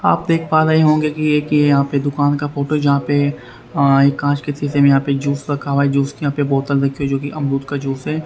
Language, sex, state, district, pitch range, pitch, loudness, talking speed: Hindi, male, Haryana, Rohtak, 140-145 Hz, 145 Hz, -17 LUFS, 285 wpm